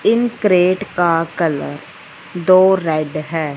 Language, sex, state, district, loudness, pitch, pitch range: Hindi, male, Punjab, Fazilka, -16 LUFS, 175 Hz, 160-190 Hz